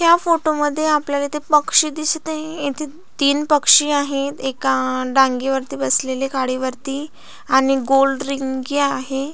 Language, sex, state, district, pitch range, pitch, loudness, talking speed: Marathi, female, Maharashtra, Solapur, 265-300 Hz, 280 Hz, -18 LUFS, 130 wpm